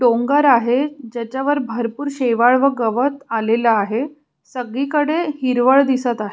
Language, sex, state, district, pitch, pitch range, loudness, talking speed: Marathi, female, Maharashtra, Pune, 255 Hz, 235-280 Hz, -17 LUFS, 125 wpm